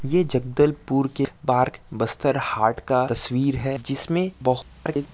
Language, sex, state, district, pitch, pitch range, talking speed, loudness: Hindi, male, Chhattisgarh, Bastar, 135 Hz, 125-145 Hz, 140 wpm, -23 LUFS